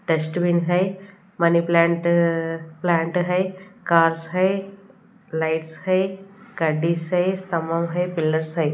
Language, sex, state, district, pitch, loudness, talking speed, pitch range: Hindi, female, Punjab, Kapurthala, 170 Hz, -22 LUFS, 115 wpm, 165-190 Hz